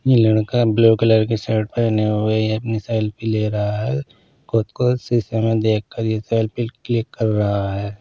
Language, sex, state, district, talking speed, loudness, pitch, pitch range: Hindi, male, Punjab, Pathankot, 185 wpm, -19 LUFS, 110 Hz, 110-115 Hz